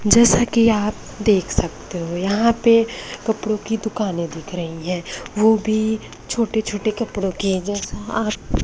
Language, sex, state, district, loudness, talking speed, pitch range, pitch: Hindi, male, Maharashtra, Gondia, -20 LUFS, 150 wpm, 190-225 Hz, 215 Hz